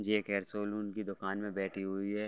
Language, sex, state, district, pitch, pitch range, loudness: Hindi, male, Bihar, Gopalganj, 100 Hz, 95-105 Hz, -37 LUFS